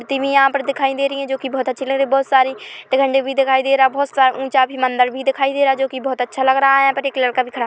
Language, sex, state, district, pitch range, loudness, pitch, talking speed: Hindi, female, Chhattisgarh, Korba, 260-275 Hz, -17 LUFS, 270 Hz, 320 wpm